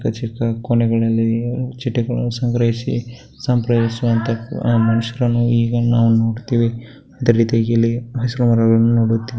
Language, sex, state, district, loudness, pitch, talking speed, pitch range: Kannada, male, Karnataka, Bellary, -18 LUFS, 115 Hz, 85 wpm, 115-120 Hz